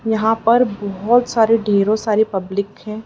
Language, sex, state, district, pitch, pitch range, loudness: Hindi, female, Madhya Pradesh, Dhar, 220 Hz, 205-225 Hz, -17 LUFS